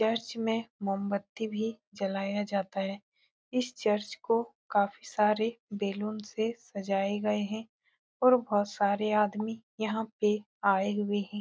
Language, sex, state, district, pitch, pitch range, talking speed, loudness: Hindi, female, Bihar, Saran, 210 Hz, 200-225 Hz, 135 wpm, -31 LUFS